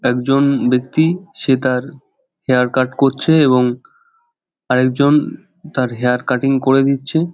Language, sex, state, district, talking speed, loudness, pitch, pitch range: Bengali, male, West Bengal, Jhargram, 130 wpm, -15 LUFS, 135 Hz, 125-160 Hz